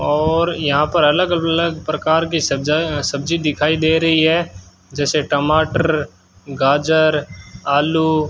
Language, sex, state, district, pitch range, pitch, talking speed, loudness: Hindi, male, Rajasthan, Bikaner, 145-160 Hz, 155 Hz, 130 wpm, -17 LUFS